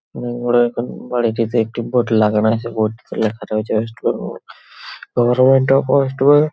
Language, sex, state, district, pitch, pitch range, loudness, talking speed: Bengali, male, West Bengal, Paschim Medinipur, 120 Hz, 110-125 Hz, -17 LUFS, 165 wpm